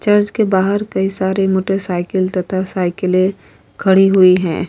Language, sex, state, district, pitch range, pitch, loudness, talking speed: Hindi, female, Bihar, Vaishali, 185-195 Hz, 190 Hz, -15 LUFS, 155 wpm